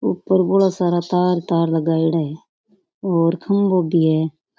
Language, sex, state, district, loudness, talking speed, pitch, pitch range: Rajasthani, female, Rajasthan, Churu, -18 LUFS, 145 wpm, 175 Hz, 165-185 Hz